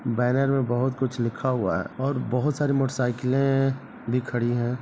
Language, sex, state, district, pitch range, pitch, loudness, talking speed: Hindi, male, Bihar, Begusarai, 120-135 Hz, 125 Hz, -25 LUFS, 185 wpm